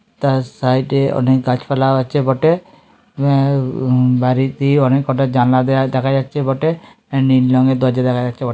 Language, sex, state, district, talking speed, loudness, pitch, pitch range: Bengali, male, West Bengal, Jhargram, 150 wpm, -15 LUFS, 135 Hz, 130-140 Hz